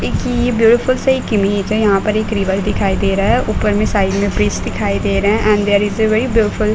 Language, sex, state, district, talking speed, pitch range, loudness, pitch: Hindi, female, Uttar Pradesh, Muzaffarnagar, 285 wpm, 200-220 Hz, -15 LUFS, 210 Hz